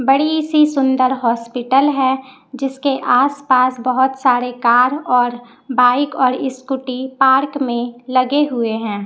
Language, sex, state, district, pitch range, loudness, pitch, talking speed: Hindi, female, Chhattisgarh, Raipur, 245-270 Hz, -16 LUFS, 260 Hz, 130 wpm